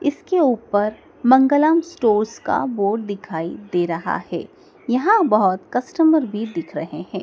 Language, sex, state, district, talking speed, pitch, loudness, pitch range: Hindi, female, Madhya Pradesh, Dhar, 140 wpm, 225 Hz, -19 LUFS, 200-300 Hz